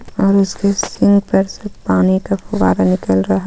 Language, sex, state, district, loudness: Hindi, female, Jharkhand, Ranchi, -15 LUFS